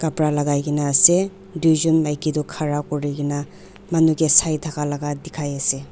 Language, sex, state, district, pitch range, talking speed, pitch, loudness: Nagamese, female, Nagaland, Dimapur, 145-160 Hz, 150 wpm, 150 Hz, -19 LUFS